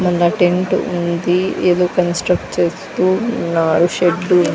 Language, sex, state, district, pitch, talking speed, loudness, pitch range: Telugu, female, Andhra Pradesh, Sri Satya Sai, 180 Hz, 120 wpm, -16 LUFS, 175-180 Hz